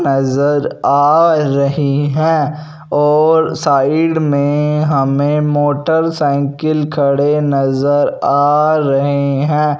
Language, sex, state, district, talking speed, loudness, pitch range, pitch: Hindi, male, Punjab, Fazilka, 85 wpm, -13 LUFS, 140-155 Hz, 145 Hz